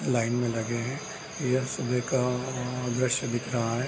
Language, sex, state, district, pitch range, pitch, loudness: Hindi, male, Bihar, Bhagalpur, 120-130 Hz, 125 Hz, -29 LUFS